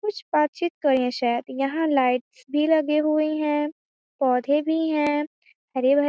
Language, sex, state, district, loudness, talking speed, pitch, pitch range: Hindi, female, Chhattisgarh, Raigarh, -23 LUFS, 150 wpm, 295 Hz, 265-310 Hz